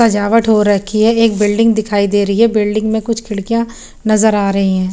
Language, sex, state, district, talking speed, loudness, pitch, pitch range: Hindi, female, Chandigarh, Chandigarh, 220 wpm, -13 LUFS, 215 Hz, 205-225 Hz